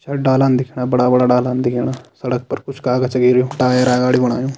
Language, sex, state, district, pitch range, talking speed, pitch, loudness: Kumaoni, male, Uttarakhand, Tehri Garhwal, 125-130 Hz, 195 wpm, 125 Hz, -16 LUFS